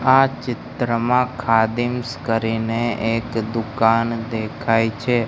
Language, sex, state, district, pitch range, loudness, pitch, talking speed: Gujarati, male, Gujarat, Gandhinagar, 115-125 Hz, -20 LUFS, 115 Hz, 90 wpm